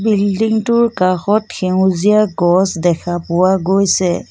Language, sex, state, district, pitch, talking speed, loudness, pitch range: Assamese, female, Assam, Sonitpur, 190 Hz, 110 wpm, -14 LUFS, 180-210 Hz